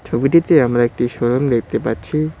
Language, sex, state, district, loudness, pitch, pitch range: Bengali, male, West Bengal, Cooch Behar, -16 LUFS, 125 Hz, 120-155 Hz